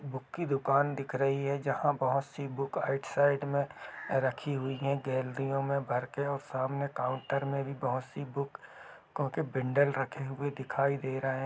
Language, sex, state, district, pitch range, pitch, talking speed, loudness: Hindi, male, Chhattisgarh, Rajnandgaon, 135-140 Hz, 135 Hz, 190 wpm, -33 LUFS